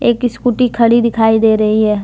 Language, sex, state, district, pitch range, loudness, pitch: Hindi, female, Jharkhand, Deoghar, 220-240 Hz, -12 LUFS, 230 Hz